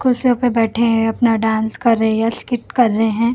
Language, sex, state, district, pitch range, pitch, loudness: Hindi, female, Delhi, New Delhi, 225-245 Hz, 230 Hz, -16 LUFS